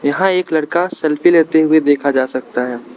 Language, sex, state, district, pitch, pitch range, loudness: Hindi, male, Arunachal Pradesh, Lower Dibang Valley, 155 Hz, 130-165 Hz, -15 LUFS